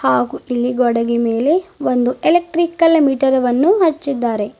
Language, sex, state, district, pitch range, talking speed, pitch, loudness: Kannada, female, Karnataka, Bidar, 235-330 Hz, 115 wpm, 265 Hz, -16 LUFS